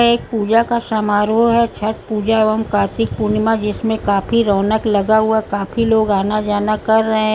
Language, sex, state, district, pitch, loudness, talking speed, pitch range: Hindi, female, Uttar Pradesh, Budaun, 220 Hz, -16 LUFS, 185 wpm, 210-225 Hz